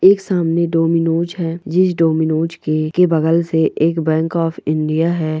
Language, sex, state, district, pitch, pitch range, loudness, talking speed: Hindi, female, Bihar, Purnia, 165 Hz, 160-170 Hz, -16 LUFS, 155 wpm